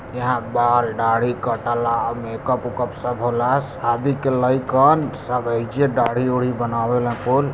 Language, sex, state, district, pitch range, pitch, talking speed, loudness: Hindi, male, Bihar, Gopalganj, 120-130 Hz, 125 Hz, 150 wpm, -20 LUFS